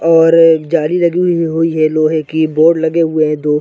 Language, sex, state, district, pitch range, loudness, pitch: Hindi, male, Chhattisgarh, Sarguja, 155-165 Hz, -12 LUFS, 160 Hz